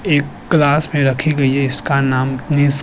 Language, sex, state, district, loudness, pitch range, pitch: Hindi, male, Uttarakhand, Tehri Garhwal, -15 LUFS, 135-150 Hz, 145 Hz